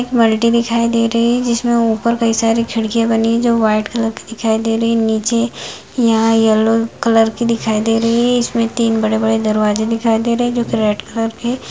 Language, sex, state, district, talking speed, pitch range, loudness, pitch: Hindi, female, Bihar, Jamui, 225 wpm, 225-235 Hz, -15 LUFS, 230 Hz